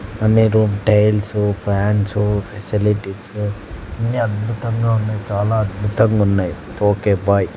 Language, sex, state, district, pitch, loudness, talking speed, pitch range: Telugu, male, Andhra Pradesh, Sri Satya Sai, 105 Hz, -18 LUFS, 110 wpm, 100-110 Hz